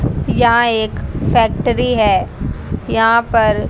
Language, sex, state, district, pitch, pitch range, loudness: Hindi, female, Haryana, Jhajjar, 230 Hz, 225-235 Hz, -15 LUFS